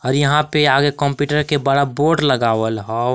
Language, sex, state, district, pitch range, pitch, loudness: Magahi, male, Jharkhand, Palamu, 125-150 Hz, 140 Hz, -16 LUFS